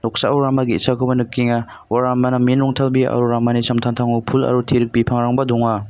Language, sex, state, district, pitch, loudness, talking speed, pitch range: Garo, male, Meghalaya, North Garo Hills, 125 Hz, -17 LUFS, 160 wpm, 120-130 Hz